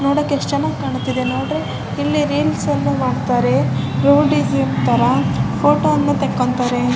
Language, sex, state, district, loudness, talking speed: Kannada, male, Karnataka, Raichur, -17 LUFS, 105 wpm